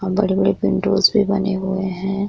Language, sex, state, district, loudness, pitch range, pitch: Hindi, female, Bihar, Vaishali, -18 LUFS, 190-200 Hz, 195 Hz